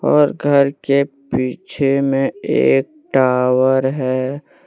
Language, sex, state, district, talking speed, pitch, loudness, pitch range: Hindi, male, Jharkhand, Deoghar, 100 wpm, 135 Hz, -17 LUFS, 130-140 Hz